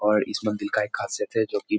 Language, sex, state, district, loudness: Hindi, male, Bihar, Lakhisarai, -26 LUFS